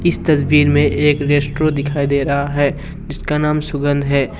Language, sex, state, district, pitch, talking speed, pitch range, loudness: Hindi, male, Assam, Kamrup Metropolitan, 145 Hz, 175 wpm, 140-150 Hz, -16 LUFS